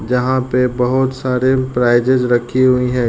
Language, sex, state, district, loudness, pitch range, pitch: Hindi, male, Uttar Pradesh, Deoria, -15 LUFS, 125-130 Hz, 125 Hz